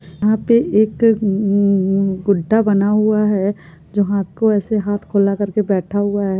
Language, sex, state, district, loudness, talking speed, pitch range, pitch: Hindi, female, Goa, North and South Goa, -16 LUFS, 160 wpm, 195-210 Hz, 205 Hz